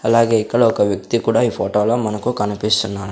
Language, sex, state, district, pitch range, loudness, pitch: Telugu, male, Andhra Pradesh, Sri Satya Sai, 105-115 Hz, -17 LUFS, 110 Hz